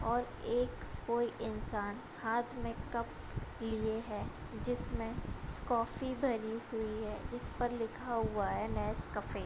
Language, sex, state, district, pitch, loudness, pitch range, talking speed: Hindi, female, Uttar Pradesh, Budaun, 230 Hz, -38 LUFS, 220-240 Hz, 140 wpm